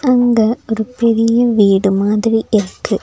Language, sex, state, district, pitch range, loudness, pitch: Tamil, female, Tamil Nadu, Nilgiris, 210-235 Hz, -14 LUFS, 225 Hz